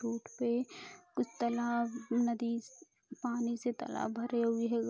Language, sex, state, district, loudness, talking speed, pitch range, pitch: Hindi, female, Bihar, Araria, -36 LUFS, 135 wpm, 235-240 Hz, 235 Hz